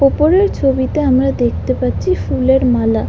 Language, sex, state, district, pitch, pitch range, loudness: Bengali, female, West Bengal, Jhargram, 270 Hz, 260-300 Hz, -14 LUFS